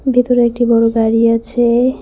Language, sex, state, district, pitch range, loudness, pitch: Bengali, female, West Bengal, Cooch Behar, 230-245 Hz, -13 LUFS, 235 Hz